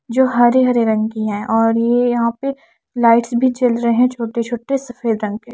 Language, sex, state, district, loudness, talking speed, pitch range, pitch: Hindi, female, Odisha, Nuapada, -16 LUFS, 215 wpm, 230-245 Hz, 235 Hz